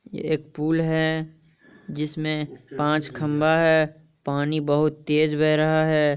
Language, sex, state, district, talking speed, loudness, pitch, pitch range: Hindi, male, Bihar, Kishanganj, 145 wpm, -23 LUFS, 155 Hz, 150-160 Hz